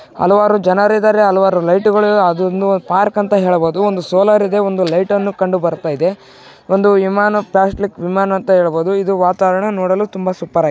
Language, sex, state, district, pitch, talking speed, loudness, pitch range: Kannada, male, Karnataka, Raichur, 195 Hz, 175 wpm, -14 LUFS, 185-205 Hz